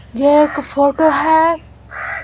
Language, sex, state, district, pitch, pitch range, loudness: Hindi, female, Bihar, Patna, 295 Hz, 280-320 Hz, -14 LUFS